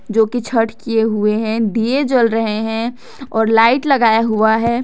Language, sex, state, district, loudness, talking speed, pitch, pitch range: Hindi, female, Jharkhand, Garhwa, -15 LUFS, 185 wpm, 225 Hz, 220-240 Hz